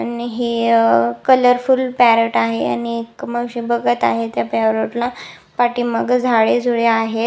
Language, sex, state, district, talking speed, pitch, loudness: Marathi, female, Maharashtra, Nagpur, 165 wpm, 235 Hz, -17 LUFS